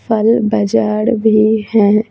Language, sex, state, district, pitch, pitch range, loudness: Hindi, female, Bihar, Patna, 220 Hz, 215-225 Hz, -13 LUFS